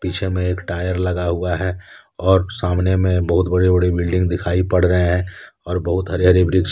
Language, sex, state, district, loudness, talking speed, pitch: Hindi, male, Jharkhand, Deoghar, -18 LUFS, 215 wpm, 90 Hz